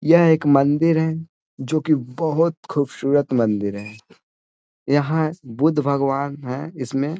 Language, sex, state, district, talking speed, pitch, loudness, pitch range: Hindi, male, Bihar, Gaya, 125 wpm, 145 Hz, -20 LUFS, 130-160 Hz